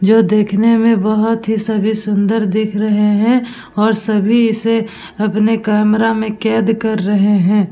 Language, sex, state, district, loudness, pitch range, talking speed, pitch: Hindi, female, Bihar, Vaishali, -14 LUFS, 210-225 Hz, 165 wpm, 215 Hz